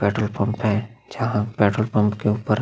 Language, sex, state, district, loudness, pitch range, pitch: Hindi, male, Chhattisgarh, Sukma, -22 LUFS, 105-110 Hz, 105 Hz